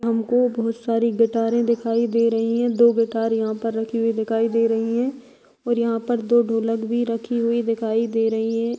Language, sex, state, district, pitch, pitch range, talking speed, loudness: Hindi, female, Bihar, Begusarai, 230 Hz, 225-235 Hz, 200 wpm, -21 LUFS